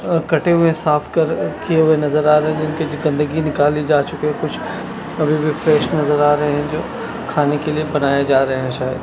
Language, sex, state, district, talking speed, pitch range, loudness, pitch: Hindi, male, Punjab, Kapurthala, 225 wpm, 145-160 Hz, -17 LUFS, 150 Hz